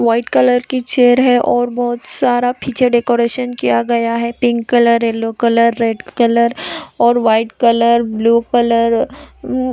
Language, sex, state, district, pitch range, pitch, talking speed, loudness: Hindi, female, Chhattisgarh, Raigarh, 230-245 Hz, 235 Hz, 155 wpm, -14 LUFS